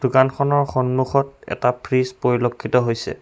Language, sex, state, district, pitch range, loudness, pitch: Assamese, male, Assam, Sonitpur, 125-135 Hz, -20 LUFS, 130 Hz